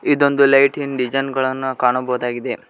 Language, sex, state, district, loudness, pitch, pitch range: Kannada, male, Karnataka, Koppal, -17 LUFS, 130 Hz, 125-140 Hz